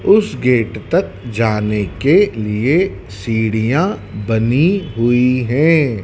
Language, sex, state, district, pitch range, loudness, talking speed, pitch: Hindi, male, Madhya Pradesh, Dhar, 105-140 Hz, -15 LUFS, 100 wpm, 115 Hz